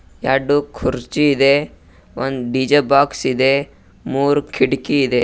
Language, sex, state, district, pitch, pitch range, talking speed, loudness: Kannada, male, Karnataka, Bidar, 140 Hz, 130-145 Hz, 105 wpm, -17 LUFS